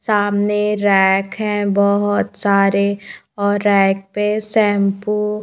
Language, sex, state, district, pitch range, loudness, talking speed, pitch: Hindi, female, Madhya Pradesh, Bhopal, 200-210 Hz, -16 LUFS, 110 wpm, 205 Hz